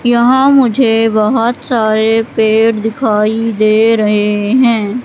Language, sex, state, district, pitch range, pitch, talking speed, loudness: Hindi, female, Madhya Pradesh, Katni, 215-240 Hz, 225 Hz, 105 wpm, -11 LUFS